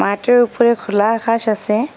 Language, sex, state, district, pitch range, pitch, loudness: Bengali, female, Assam, Hailakandi, 210-235 Hz, 230 Hz, -15 LUFS